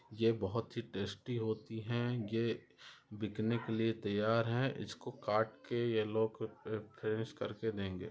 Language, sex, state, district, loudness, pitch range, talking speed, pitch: Hindi, female, Rajasthan, Nagaur, -38 LUFS, 110-115 Hz, 155 wpm, 110 Hz